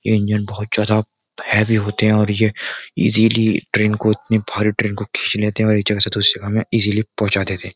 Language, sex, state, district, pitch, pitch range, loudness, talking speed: Hindi, male, Uttar Pradesh, Jyotiba Phule Nagar, 105 Hz, 105-110 Hz, -17 LUFS, 225 wpm